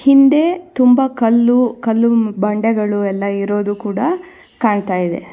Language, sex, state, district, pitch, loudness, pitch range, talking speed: Kannada, female, Karnataka, Bangalore, 225 Hz, -15 LUFS, 205-265 Hz, 115 wpm